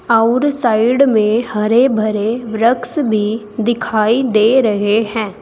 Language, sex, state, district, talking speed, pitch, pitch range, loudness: Hindi, female, Uttar Pradesh, Saharanpur, 120 wpm, 225 Hz, 215-245 Hz, -14 LUFS